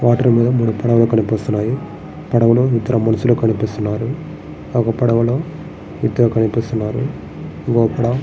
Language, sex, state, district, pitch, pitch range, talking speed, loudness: Telugu, male, Andhra Pradesh, Srikakulam, 115 Hz, 110-120 Hz, 80 wpm, -17 LUFS